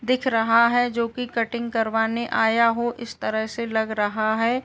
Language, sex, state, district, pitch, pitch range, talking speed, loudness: Hindi, female, Uttar Pradesh, Gorakhpur, 230 Hz, 225-235 Hz, 195 wpm, -22 LUFS